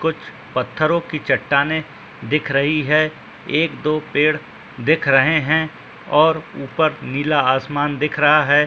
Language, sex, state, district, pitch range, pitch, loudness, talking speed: Hindi, male, Uttar Pradesh, Muzaffarnagar, 140-155 Hz, 150 Hz, -18 LUFS, 140 wpm